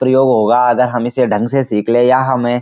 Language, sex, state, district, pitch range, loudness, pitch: Hindi, male, Uttarakhand, Uttarkashi, 120-130 Hz, -13 LUFS, 125 Hz